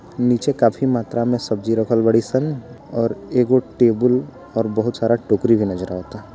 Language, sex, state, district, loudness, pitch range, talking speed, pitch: Bhojpuri, male, Bihar, Gopalganj, -19 LUFS, 110-125 Hz, 170 wpm, 115 Hz